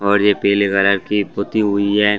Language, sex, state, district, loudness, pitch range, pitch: Hindi, male, Chhattisgarh, Bastar, -16 LUFS, 100-105 Hz, 100 Hz